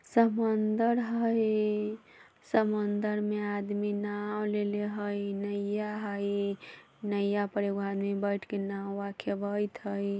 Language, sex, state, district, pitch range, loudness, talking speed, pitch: Bajjika, female, Bihar, Vaishali, 200-210 Hz, -31 LUFS, 110 wpm, 205 Hz